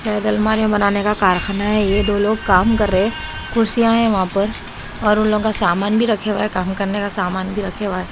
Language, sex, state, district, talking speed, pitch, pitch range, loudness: Hindi, female, Punjab, Pathankot, 235 wpm, 210 Hz, 195-215 Hz, -17 LUFS